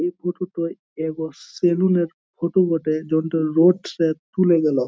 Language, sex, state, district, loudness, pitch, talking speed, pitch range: Bengali, male, West Bengal, Jhargram, -21 LUFS, 165 Hz, 125 wpm, 160-180 Hz